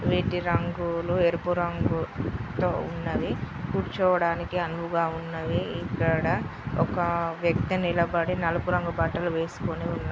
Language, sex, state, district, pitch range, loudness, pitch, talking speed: Telugu, male, Telangana, Karimnagar, 170-175 Hz, -27 LUFS, 170 Hz, 100 wpm